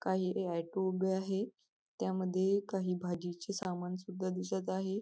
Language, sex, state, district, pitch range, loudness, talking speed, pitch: Marathi, female, Maharashtra, Nagpur, 180-190 Hz, -36 LUFS, 145 wpm, 185 Hz